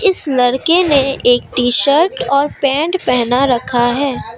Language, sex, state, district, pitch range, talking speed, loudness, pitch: Hindi, female, Assam, Kamrup Metropolitan, 245-295 Hz, 135 wpm, -13 LUFS, 275 Hz